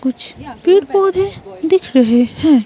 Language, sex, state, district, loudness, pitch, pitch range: Hindi, female, Himachal Pradesh, Shimla, -14 LUFS, 315 Hz, 255-380 Hz